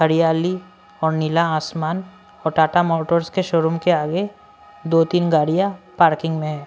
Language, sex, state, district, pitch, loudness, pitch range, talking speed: Hindi, male, Maharashtra, Washim, 165 Hz, -19 LUFS, 160-185 Hz, 155 wpm